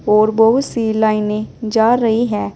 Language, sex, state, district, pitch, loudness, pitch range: Hindi, female, Uttar Pradesh, Saharanpur, 220 Hz, -15 LUFS, 215-230 Hz